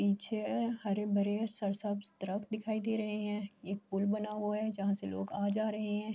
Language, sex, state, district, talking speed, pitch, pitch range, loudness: Urdu, female, Andhra Pradesh, Anantapur, 215 wpm, 210 Hz, 200-215 Hz, -36 LUFS